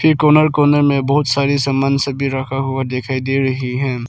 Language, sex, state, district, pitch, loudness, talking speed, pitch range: Hindi, male, Arunachal Pradesh, Lower Dibang Valley, 135 Hz, -16 LUFS, 205 wpm, 135-145 Hz